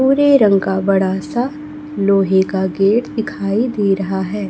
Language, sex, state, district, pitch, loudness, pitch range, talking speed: Hindi, male, Chhattisgarh, Raipur, 200 Hz, -16 LUFS, 190-250 Hz, 160 wpm